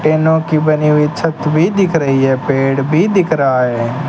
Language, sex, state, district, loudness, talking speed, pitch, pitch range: Hindi, male, Rajasthan, Bikaner, -13 LUFS, 205 wpm, 150 Hz, 135-160 Hz